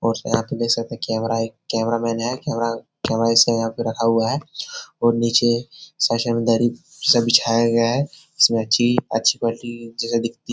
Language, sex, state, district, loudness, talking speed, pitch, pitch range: Hindi, male, Bihar, Jahanabad, -20 LUFS, 200 wpm, 115 Hz, 115-120 Hz